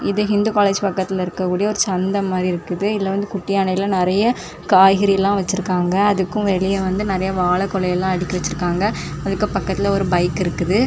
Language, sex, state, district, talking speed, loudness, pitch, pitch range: Tamil, female, Tamil Nadu, Kanyakumari, 170 wpm, -19 LUFS, 190 Hz, 185-200 Hz